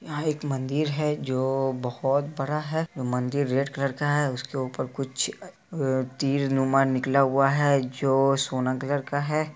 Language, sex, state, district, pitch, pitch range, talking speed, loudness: Hindi, male, Bihar, Araria, 135 Hz, 130-145 Hz, 155 wpm, -26 LUFS